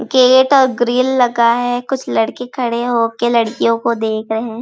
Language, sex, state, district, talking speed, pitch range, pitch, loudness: Hindi, female, Chhattisgarh, Balrampur, 180 wpm, 230-255 Hz, 240 Hz, -15 LUFS